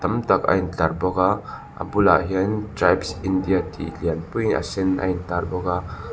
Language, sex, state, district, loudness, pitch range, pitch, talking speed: Mizo, male, Mizoram, Aizawl, -22 LUFS, 90-95 Hz, 95 Hz, 195 wpm